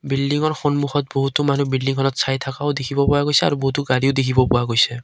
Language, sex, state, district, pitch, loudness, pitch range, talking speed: Assamese, male, Assam, Kamrup Metropolitan, 135 Hz, -19 LUFS, 135-145 Hz, 190 wpm